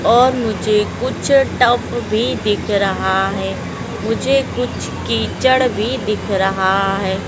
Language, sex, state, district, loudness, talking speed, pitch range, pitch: Hindi, female, Madhya Pradesh, Dhar, -17 LUFS, 125 wpm, 195-250 Hz, 210 Hz